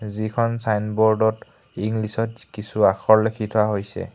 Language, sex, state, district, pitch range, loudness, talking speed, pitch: Assamese, male, Assam, Hailakandi, 105-110 Hz, -21 LUFS, 115 wpm, 110 Hz